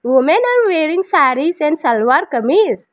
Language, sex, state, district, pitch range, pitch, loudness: English, female, Arunachal Pradesh, Lower Dibang Valley, 300-425 Hz, 340 Hz, -14 LUFS